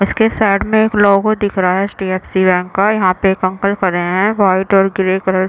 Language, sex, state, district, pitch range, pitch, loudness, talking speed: Hindi, female, Chhattisgarh, Raigarh, 185-205 Hz, 195 Hz, -14 LUFS, 240 wpm